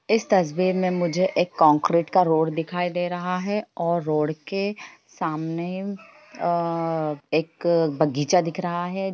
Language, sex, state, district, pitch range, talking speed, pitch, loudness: Hindi, female, Bihar, Jamui, 160-185 Hz, 145 wpm, 175 Hz, -23 LUFS